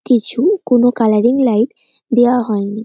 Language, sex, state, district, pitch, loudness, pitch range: Bengali, male, West Bengal, North 24 Parganas, 245 Hz, -14 LUFS, 220-260 Hz